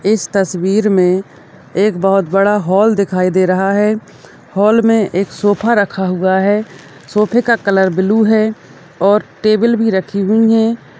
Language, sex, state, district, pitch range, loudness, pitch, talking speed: Hindi, female, Uttar Pradesh, Ghazipur, 190-215 Hz, -13 LUFS, 200 Hz, 160 wpm